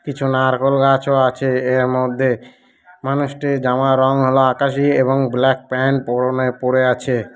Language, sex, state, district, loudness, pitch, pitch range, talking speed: Bengali, male, West Bengal, Malda, -17 LUFS, 130 Hz, 130-135 Hz, 140 wpm